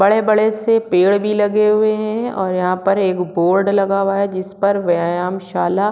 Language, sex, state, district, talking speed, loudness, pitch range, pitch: Hindi, female, Chhattisgarh, Korba, 190 wpm, -16 LUFS, 185-215 Hz, 195 Hz